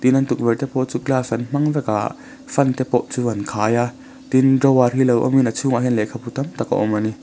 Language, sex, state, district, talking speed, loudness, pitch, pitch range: Mizo, male, Mizoram, Aizawl, 265 wpm, -19 LUFS, 125 Hz, 115-135 Hz